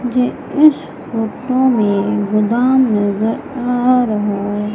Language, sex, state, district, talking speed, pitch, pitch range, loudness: Hindi, female, Madhya Pradesh, Umaria, 100 wpm, 230 Hz, 210-255 Hz, -15 LUFS